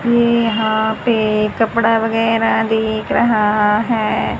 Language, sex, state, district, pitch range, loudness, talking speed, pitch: Hindi, female, Haryana, Jhajjar, 220-230 Hz, -15 LUFS, 110 wpm, 225 Hz